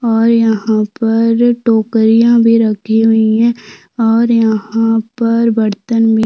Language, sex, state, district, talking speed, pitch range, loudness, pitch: Hindi, female, Chhattisgarh, Sukma, 135 wpm, 220-230 Hz, -12 LUFS, 225 Hz